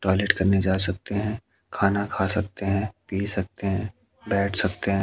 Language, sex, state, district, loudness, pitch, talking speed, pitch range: Hindi, male, Haryana, Jhajjar, -25 LUFS, 100 Hz, 180 wpm, 95-105 Hz